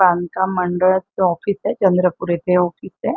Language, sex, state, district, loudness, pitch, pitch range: Marathi, female, Maharashtra, Chandrapur, -18 LUFS, 180 Hz, 175-190 Hz